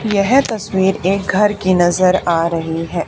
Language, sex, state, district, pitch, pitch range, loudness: Hindi, female, Haryana, Charkhi Dadri, 190 Hz, 170-200 Hz, -15 LUFS